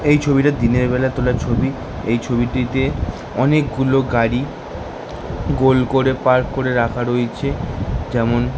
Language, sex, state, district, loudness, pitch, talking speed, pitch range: Bengali, male, West Bengal, Kolkata, -18 LUFS, 130 Hz, 120 wpm, 120-135 Hz